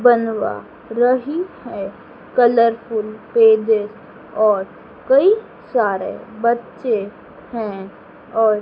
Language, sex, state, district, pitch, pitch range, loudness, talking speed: Hindi, female, Madhya Pradesh, Dhar, 225 Hz, 215-240 Hz, -18 LUFS, 75 wpm